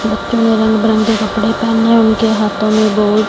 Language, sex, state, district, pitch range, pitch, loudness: Hindi, female, Punjab, Fazilka, 215-225 Hz, 220 Hz, -12 LUFS